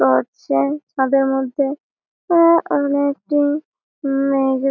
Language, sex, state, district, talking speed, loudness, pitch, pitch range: Bengali, female, West Bengal, Malda, 100 wpm, -18 LUFS, 275 Hz, 265-295 Hz